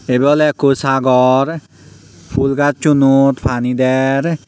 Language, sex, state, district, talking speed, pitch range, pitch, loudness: Chakma, male, Tripura, Unakoti, 105 wpm, 130-145 Hz, 135 Hz, -14 LUFS